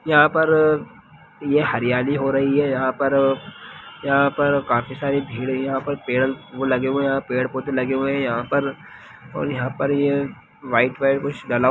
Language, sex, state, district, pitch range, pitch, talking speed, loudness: Hindi, male, Bihar, Lakhisarai, 130-140 Hz, 135 Hz, 180 wpm, -21 LUFS